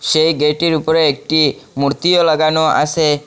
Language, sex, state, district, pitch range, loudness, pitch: Bengali, male, Assam, Hailakandi, 150-160 Hz, -14 LUFS, 155 Hz